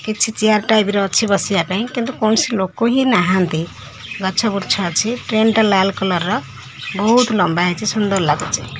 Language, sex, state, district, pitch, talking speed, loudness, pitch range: Odia, female, Odisha, Khordha, 200 Hz, 170 wpm, -16 LUFS, 175-220 Hz